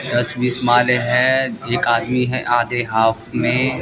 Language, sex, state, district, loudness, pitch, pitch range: Hindi, male, Bihar, West Champaran, -17 LUFS, 120 Hz, 120-125 Hz